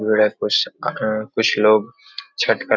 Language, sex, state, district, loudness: Hindi, male, Bihar, Jahanabad, -19 LUFS